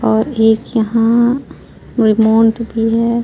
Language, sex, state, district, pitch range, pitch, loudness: Hindi, female, Jharkhand, Ranchi, 225-235 Hz, 225 Hz, -14 LUFS